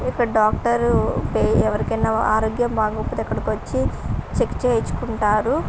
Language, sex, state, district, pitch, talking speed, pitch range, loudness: Telugu, female, Andhra Pradesh, Visakhapatnam, 215 Hz, 105 wpm, 215-225 Hz, -21 LUFS